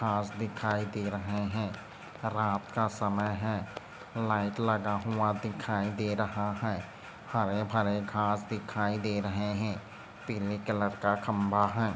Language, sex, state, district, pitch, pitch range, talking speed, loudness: Hindi, male, Maharashtra, Dhule, 105 Hz, 100-110 Hz, 135 wpm, -32 LUFS